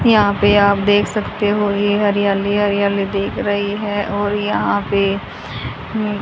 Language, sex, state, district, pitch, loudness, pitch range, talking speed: Hindi, female, Haryana, Charkhi Dadri, 205 Hz, -17 LUFS, 200-205 Hz, 145 wpm